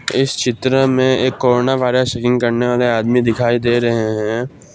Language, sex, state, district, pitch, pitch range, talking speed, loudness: Hindi, male, Assam, Kamrup Metropolitan, 125 Hz, 120-130 Hz, 175 wpm, -16 LUFS